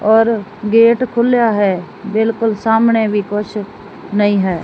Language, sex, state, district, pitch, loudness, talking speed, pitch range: Punjabi, female, Punjab, Fazilka, 215 Hz, -14 LUFS, 130 wpm, 205-230 Hz